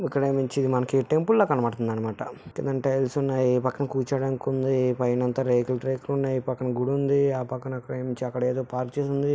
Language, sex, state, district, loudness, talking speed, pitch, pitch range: Telugu, male, Andhra Pradesh, Visakhapatnam, -26 LUFS, 175 wpm, 130 Hz, 125-135 Hz